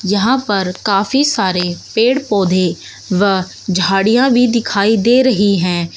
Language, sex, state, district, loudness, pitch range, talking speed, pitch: Hindi, female, Uttar Pradesh, Shamli, -14 LUFS, 185-235 Hz, 130 wpm, 200 Hz